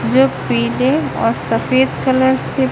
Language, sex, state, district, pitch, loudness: Hindi, female, Chhattisgarh, Raipur, 130 Hz, -15 LUFS